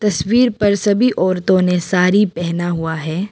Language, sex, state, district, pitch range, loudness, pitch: Hindi, female, Arunachal Pradesh, Papum Pare, 175-205 Hz, -16 LUFS, 185 Hz